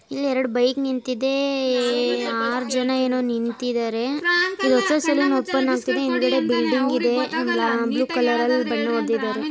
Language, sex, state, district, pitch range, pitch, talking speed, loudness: Kannada, female, Karnataka, Dakshina Kannada, 235-265 Hz, 255 Hz, 45 wpm, -21 LUFS